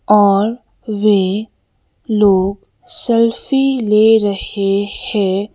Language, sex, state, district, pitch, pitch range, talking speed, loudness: Hindi, female, Sikkim, Gangtok, 210 Hz, 200-230 Hz, 75 wpm, -15 LUFS